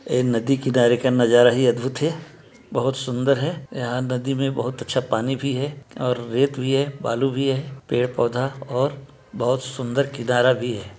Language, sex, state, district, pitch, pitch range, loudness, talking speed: Chhattisgarhi, male, Chhattisgarh, Sarguja, 130 Hz, 125-135 Hz, -22 LUFS, 185 wpm